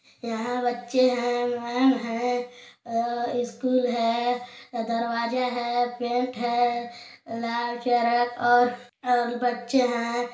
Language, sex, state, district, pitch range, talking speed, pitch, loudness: Hindi, male, Chhattisgarh, Balrampur, 240-245 Hz, 100 wpm, 240 Hz, -25 LUFS